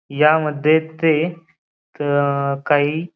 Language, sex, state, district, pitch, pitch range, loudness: Marathi, male, Maharashtra, Pune, 155 Hz, 145-160 Hz, -18 LUFS